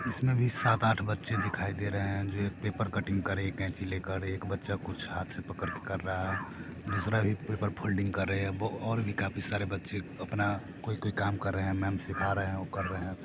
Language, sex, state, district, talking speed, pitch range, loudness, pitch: Hindi, male, Bihar, Sitamarhi, 265 wpm, 95-105 Hz, -33 LUFS, 100 Hz